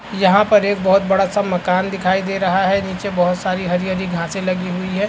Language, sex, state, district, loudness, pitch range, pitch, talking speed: Hindi, male, Uttar Pradesh, Varanasi, -17 LUFS, 185-195 Hz, 190 Hz, 210 wpm